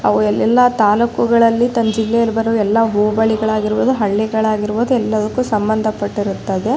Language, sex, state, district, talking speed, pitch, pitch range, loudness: Kannada, female, Karnataka, Raichur, 115 wpm, 220 Hz, 210-230 Hz, -15 LUFS